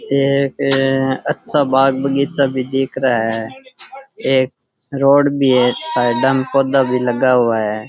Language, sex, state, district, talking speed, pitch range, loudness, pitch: Rajasthani, male, Rajasthan, Churu, 150 wpm, 125-140 Hz, -16 LUFS, 135 Hz